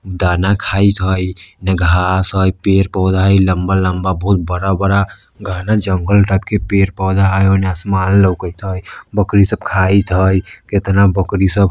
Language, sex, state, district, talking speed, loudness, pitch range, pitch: Maithili, male, Bihar, Vaishali, 155 wpm, -14 LUFS, 95-100 Hz, 95 Hz